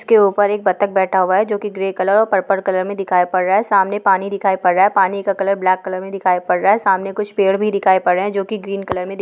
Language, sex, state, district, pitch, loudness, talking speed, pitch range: Hindi, female, Bihar, East Champaran, 195 Hz, -16 LUFS, 305 wpm, 185-200 Hz